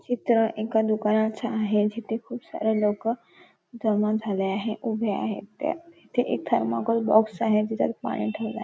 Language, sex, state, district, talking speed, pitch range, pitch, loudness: Marathi, female, Maharashtra, Nagpur, 160 wpm, 215-230 Hz, 220 Hz, -26 LUFS